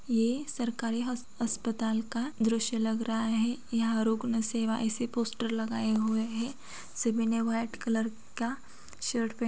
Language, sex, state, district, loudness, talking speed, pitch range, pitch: Hindi, female, Bihar, Gopalganj, -31 LUFS, 165 wpm, 225-235 Hz, 230 Hz